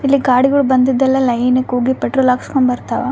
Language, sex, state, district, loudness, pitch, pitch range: Kannada, female, Karnataka, Raichur, -14 LUFS, 260 Hz, 250-265 Hz